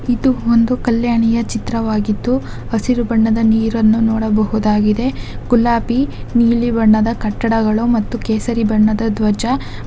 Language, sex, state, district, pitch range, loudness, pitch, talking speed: Kannada, female, Karnataka, Dakshina Kannada, 220-235 Hz, -15 LUFS, 225 Hz, 90 wpm